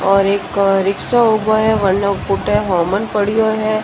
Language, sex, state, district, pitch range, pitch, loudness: Marwari, female, Rajasthan, Churu, 195-215 Hz, 205 Hz, -15 LUFS